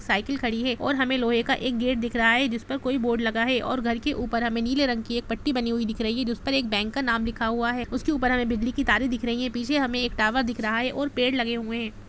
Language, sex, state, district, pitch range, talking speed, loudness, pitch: Hindi, female, Jharkhand, Jamtara, 230-255 Hz, 320 wpm, -25 LUFS, 240 Hz